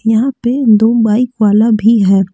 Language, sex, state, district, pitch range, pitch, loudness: Hindi, female, Jharkhand, Deoghar, 215-235 Hz, 225 Hz, -11 LUFS